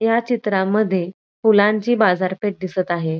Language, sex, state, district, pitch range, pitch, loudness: Marathi, female, Maharashtra, Dhule, 185-215 Hz, 205 Hz, -19 LUFS